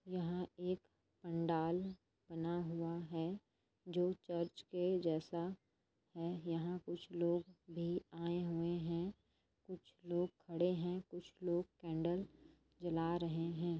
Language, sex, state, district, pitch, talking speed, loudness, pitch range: Hindi, female, Chhattisgarh, Raigarh, 175 Hz, 120 wpm, -42 LUFS, 165-180 Hz